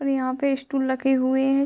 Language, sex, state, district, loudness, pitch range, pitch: Hindi, female, Bihar, Muzaffarpur, -23 LUFS, 260-275 Hz, 270 Hz